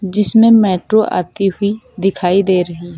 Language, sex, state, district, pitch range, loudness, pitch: Hindi, female, Uttar Pradesh, Lucknow, 185-215 Hz, -13 LUFS, 195 Hz